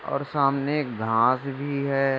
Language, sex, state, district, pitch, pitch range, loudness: Hindi, male, Maharashtra, Dhule, 135 Hz, 130-140 Hz, -25 LUFS